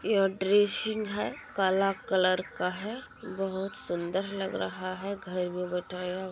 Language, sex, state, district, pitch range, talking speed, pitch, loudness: Maithili, female, Bihar, Supaul, 185-200 Hz, 150 wpm, 190 Hz, -30 LUFS